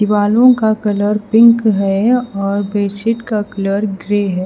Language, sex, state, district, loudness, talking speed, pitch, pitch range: Hindi, female, Haryana, Rohtak, -14 LUFS, 150 wpm, 210 Hz, 200-225 Hz